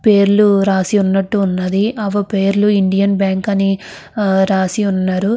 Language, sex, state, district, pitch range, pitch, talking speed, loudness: Telugu, female, Andhra Pradesh, Krishna, 190-205 Hz, 195 Hz, 125 wpm, -15 LUFS